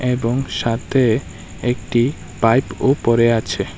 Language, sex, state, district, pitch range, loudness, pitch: Bengali, male, Tripura, West Tripura, 110-125 Hz, -18 LUFS, 115 Hz